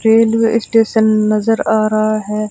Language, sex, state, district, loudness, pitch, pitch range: Hindi, female, Rajasthan, Bikaner, -14 LUFS, 220 Hz, 215-225 Hz